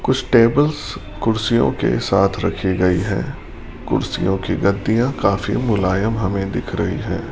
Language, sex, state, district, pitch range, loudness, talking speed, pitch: Hindi, male, Rajasthan, Jaipur, 95-115 Hz, -19 LUFS, 140 wpm, 100 Hz